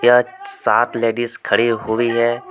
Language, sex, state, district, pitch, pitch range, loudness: Hindi, male, Jharkhand, Deoghar, 120 Hz, 115-120 Hz, -18 LUFS